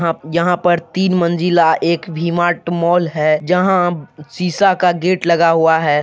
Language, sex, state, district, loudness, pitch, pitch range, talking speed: Hindi, male, Bihar, Supaul, -15 LUFS, 170 Hz, 165-180 Hz, 150 wpm